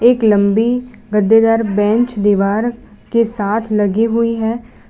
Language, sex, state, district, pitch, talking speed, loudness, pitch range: Hindi, female, Gujarat, Valsad, 225 Hz, 125 wpm, -15 LUFS, 210-230 Hz